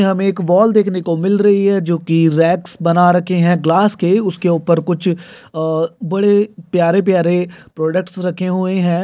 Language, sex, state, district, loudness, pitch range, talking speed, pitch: Hindi, male, Bihar, Jamui, -15 LUFS, 170-195 Hz, 185 wpm, 180 Hz